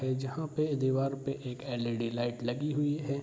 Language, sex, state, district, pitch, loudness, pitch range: Hindi, male, Bihar, Saharsa, 135 Hz, -33 LUFS, 120-145 Hz